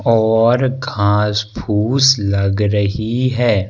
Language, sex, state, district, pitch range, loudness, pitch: Hindi, male, Madhya Pradesh, Bhopal, 105-120 Hz, -15 LUFS, 110 Hz